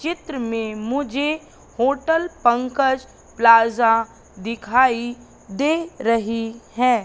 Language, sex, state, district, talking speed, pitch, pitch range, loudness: Hindi, female, Madhya Pradesh, Katni, 85 wpm, 240 Hz, 230-280 Hz, -20 LUFS